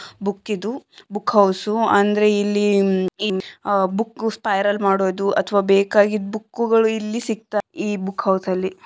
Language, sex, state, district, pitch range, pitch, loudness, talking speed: Kannada, female, Karnataka, Gulbarga, 195-215 Hz, 205 Hz, -20 LUFS, 130 wpm